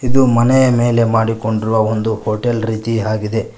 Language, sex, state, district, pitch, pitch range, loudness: Kannada, male, Karnataka, Koppal, 115 Hz, 110-120 Hz, -15 LUFS